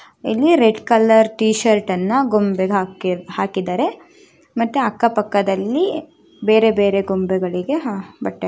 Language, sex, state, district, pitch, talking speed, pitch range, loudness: Kannada, female, Karnataka, Shimoga, 210 Hz, 120 wpm, 190-230 Hz, -17 LUFS